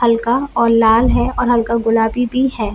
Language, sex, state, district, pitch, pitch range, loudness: Hindi, female, Jharkhand, Jamtara, 235 Hz, 225-245 Hz, -15 LUFS